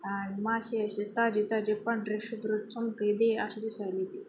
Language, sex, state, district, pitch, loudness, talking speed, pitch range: Marathi, female, Maharashtra, Sindhudurg, 215 Hz, -32 LUFS, 125 wpm, 210-230 Hz